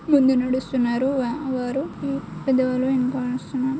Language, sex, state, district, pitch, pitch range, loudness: Telugu, female, Telangana, Karimnagar, 260 Hz, 255-270 Hz, -23 LUFS